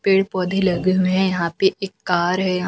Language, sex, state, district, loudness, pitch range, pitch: Hindi, female, Chhattisgarh, Raipur, -19 LUFS, 180-190 Hz, 185 Hz